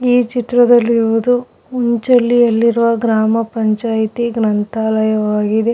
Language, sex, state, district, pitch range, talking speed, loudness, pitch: Kannada, female, Karnataka, Shimoga, 220-240 Hz, 85 wpm, -14 LUFS, 230 Hz